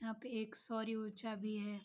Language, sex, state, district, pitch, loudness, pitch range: Hindi, female, Uttar Pradesh, Gorakhpur, 220 Hz, -42 LUFS, 210-225 Hz